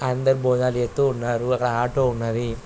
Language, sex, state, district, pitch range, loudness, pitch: Telugu, male, Andhra Pradesh, Krishna, 120-130 Hz, -22 LUFS, 125 Hz